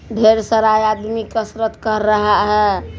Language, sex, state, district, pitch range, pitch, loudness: Hindi, female, Bihar, Supaul, 210-225 Hz, 220 Hz, -16 LUFS